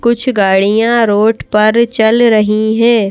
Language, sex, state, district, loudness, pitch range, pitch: Hindi, female, Madhya Pradesh, Bhopal, -10 LUFS, 210-235 Hz, 220 Hz